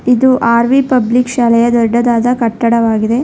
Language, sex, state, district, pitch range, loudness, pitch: Kannada, female, Karnataka, Bangalore, 230-250 Hz, -11 LUFS, 235 Hz